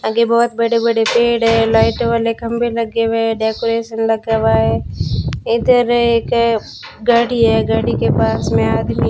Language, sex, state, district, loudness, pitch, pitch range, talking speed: Hindi, female, Rajasthan, Bikaner, -15 LUFS, 230 Hz, 215-235 Hz, 170 wpm